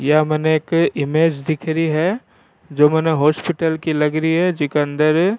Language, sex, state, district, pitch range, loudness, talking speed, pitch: Rajasthani, male, Rajasthan, Churu, 150-165 Hz, -17 LUFS, 180 wpm, 155 Hz